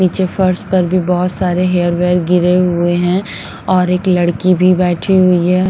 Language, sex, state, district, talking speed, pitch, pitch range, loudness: Hindi, female, Punjab, Pathankot, 190 wpm, 180 Hz, 180-185 Hz, -13 LUFS